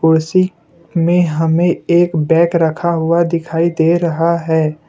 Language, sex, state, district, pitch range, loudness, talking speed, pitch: Hindi, male, Assam, Kamrup Metropolitan, 160-170 Hz, -14 LUFS, 120 wpm, 170 Hz